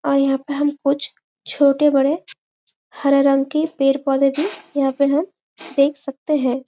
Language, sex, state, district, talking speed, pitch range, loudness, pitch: Hindi, female, Chhattisgarh, Bastar, 170 wpm, 275-295 Hz, -19 LUFS, 280 Hz